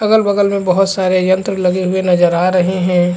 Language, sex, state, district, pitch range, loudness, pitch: Hindi, male, Chhattisgarh, Bastar, 180-195 Hz, -14 LUFS, 185 Hz